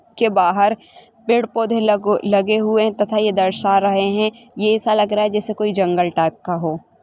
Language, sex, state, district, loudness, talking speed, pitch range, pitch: Hindi, female, Chhattisgarh, Rajnandgaon, -17 LUFS, 190 wpm, 195-220 Hz, 210 Hz